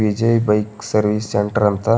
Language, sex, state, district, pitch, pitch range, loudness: Kannada, male, Karnataka, Bidar, 105 Hz, 105-110 Hz, -18 LUFS